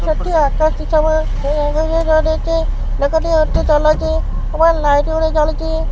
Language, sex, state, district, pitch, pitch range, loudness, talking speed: Odia, male, Odisha, Khordha, 315 Hz, 305-320 Hz, -16 LUFS, 110 wpm